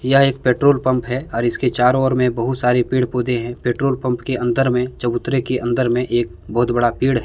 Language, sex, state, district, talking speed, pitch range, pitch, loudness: Hindi, male, Jharkhand, Deoghar, 240 wpm, 120-130 Hz, 125 Hz, -18 LUFS